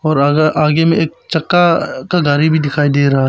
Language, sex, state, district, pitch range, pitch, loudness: Hindi, male, Arunachal Pradesh, Papum Pare, 145-165 Hz, 155 Hz, -13 LUFS